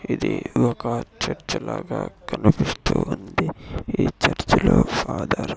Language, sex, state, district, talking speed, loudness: Telugu, male, Andhra Pradesh, Sri Satya Sai, 120 wpm, -23 LUFS